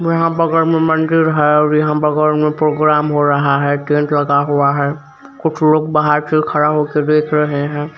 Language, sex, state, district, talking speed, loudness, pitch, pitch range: Maithili, male, Bihar, Supaul, 195 wpm, -14 LUFS, 150 Hz, 150-155 Hz